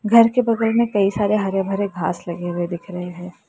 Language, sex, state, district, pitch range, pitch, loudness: Hindi, female, Uttar Pradesh, Lalitpur, 180-220 Hz, 195 Hz, -20 LUFS